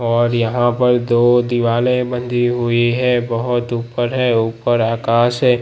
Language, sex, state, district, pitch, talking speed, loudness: Hindi, male, Gujarat, Gandhinagar, 120 Hz, 150 wpm, -16 LUFS